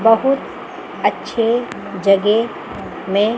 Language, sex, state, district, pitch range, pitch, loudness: Hindi, female, Chandigarh, Chandigarh, 200-235 Hz, 225 Hz, -18 LUFS